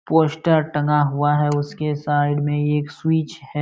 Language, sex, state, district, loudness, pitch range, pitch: Hindi, male, Uttar Pradesh, Jalaun, -20 LUFS, 145-155 Hz, 150 Hz